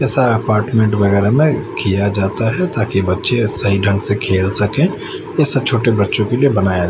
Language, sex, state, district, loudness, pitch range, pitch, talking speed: Hindi, male, Chandigarh, Chandigarh, -15 LUFS, 100-125 Hz, 105 Hz, 175 wpm